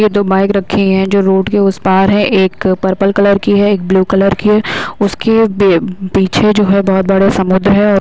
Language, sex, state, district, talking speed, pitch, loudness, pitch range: Hindi, female, Uttar Pradesh, Hamirpur, 225 wpm, 195 Hz, -11 LUFS, 190-205 Hz